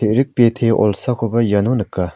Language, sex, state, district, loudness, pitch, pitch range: Garo, male, Meghalaya, South Garo Hills, -16 LUFS, 115 Hz, 105-120 Hz